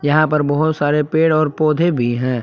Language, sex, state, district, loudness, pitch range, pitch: Hindi, male, Jharkhand, Palamu, -16 LUFS, 145-155 Hz, 150 Hz